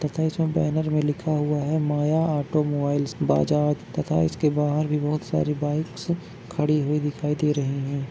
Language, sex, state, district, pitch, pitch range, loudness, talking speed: Hindi, male, Chhattisgarh, Bastar, 150 Hz, 140-155 Hz, -24 LUFS, 170 wpm